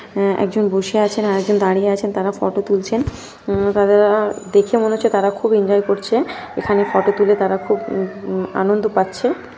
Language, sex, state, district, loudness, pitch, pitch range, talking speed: Bengali, female, West Bengal, North 24 Parganas, -17 LUFS, 200 Hz, 200-210 Hz, 170 wpm